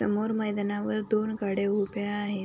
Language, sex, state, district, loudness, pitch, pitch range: Marathi, female, Maharashtra, Sindhudurg, -29 LUFS, 205 Hz, 205-215 Hz